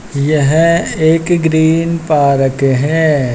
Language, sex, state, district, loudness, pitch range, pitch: Hindi, male, Haryana, Charkhi Dadri, -12 LUFS, 140-165 Hz, 160 Hz